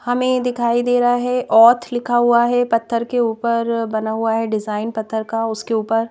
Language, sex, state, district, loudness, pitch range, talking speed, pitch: Hindi, female, Madhya Pradesh, Bhopal, -18 LUFS, 225-245 Hz, 195 wpm, 230 Hz